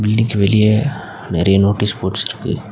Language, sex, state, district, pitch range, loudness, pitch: Tamil, male, Tamil Nadu, Nilgiris, 100-110 Hz, -16 LUFS, 105 Hz